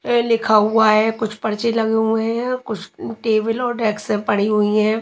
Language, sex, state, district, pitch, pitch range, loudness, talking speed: Hindi, female, Maharashtra, Mumbai Suburban, 220 Hz, 215-225 Hz, -18 LUFS, 205 wpm